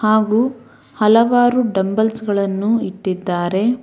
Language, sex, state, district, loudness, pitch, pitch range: Kannada, female, Karnataka, Bangalore, -17 LUFS, 215 Hz, 195-235 Hz